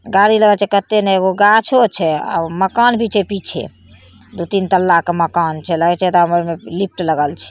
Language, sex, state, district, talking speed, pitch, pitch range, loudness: Maithili, female, Bihar, Samastipur, 215 wpm, 185 Hz, 165-205 Hz, -14 LUFS